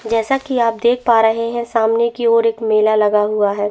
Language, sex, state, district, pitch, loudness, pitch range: Hindi, female, Chhattisgarh, Bastar, 230 Hz, -15 LUFS, 215-235 Hz